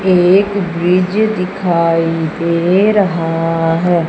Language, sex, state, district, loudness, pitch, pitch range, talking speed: Hindi, male, Madhya Pradesh, Umaria, -13 LUFS, 175 Hz, 165-190 Hz, 90 wpm